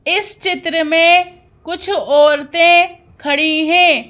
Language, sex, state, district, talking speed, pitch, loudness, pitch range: Hindi, female, Madhya Pradesh, Bhopal, 100 wpm, 335 Hz, -12 LUFS, 310-355 Hz